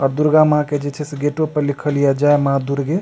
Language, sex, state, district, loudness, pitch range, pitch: Maithili, male, Bihar, Supaul, -17 LUFS, 140-150 Hz, 145 Hz